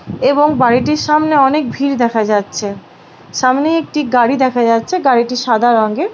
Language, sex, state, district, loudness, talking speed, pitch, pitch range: Bengali, female, West Bengal, Paschim Medinipur, -13 LUFS, 145 wpm, 260 Hz, 235-295 Hz